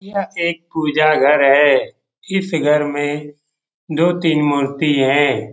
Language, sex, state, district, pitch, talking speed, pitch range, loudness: Hindi, male, Bihar, Jamui, 150 Hz, 140 wpm, 145-170 Hz, -16 LUFS